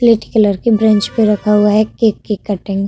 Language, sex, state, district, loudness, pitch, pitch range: Hindi, female, Uttar Pradesh, Budaun, -13 LUFS, 210 Hz, 205-220 Hz